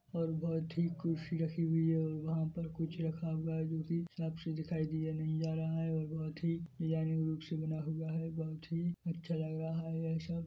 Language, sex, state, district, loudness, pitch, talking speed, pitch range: Hindi, male, Chhattisgarh, Bilaspur, -38 LUFS, 160 Hz, 220 wpm, 160-165 Hz